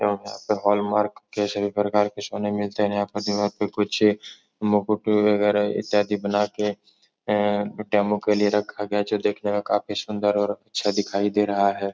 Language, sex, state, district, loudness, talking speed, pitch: Hindi, male, Uttar Pradesh, Etah, -23 LUFS, 195 wpm, 105 Hz